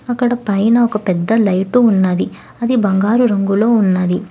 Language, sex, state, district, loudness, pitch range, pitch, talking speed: Telugu, female, Telangana, Hyderabad, -14 LUFS, 190-240 Hz, 210 Hz, 140 wpm